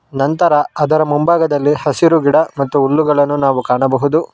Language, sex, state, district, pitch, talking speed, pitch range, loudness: Kannada, male, Karnataka, Bangalore, 145 Hz, 125 wpm, 140-155 Hz, -13 LUFS